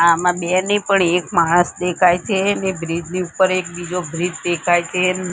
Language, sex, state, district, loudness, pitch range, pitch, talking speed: Gujarati, female, Gujarat, Gandhinagar, -18 LUFS, 175-185 Hz, 180 Hz, 190 wpm